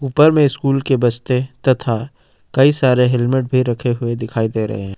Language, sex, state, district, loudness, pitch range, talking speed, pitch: Hindi, male, Jharkhand, Ranchi, -16 LUFS, 120-135 Hz, 195 wpm, 125 Hz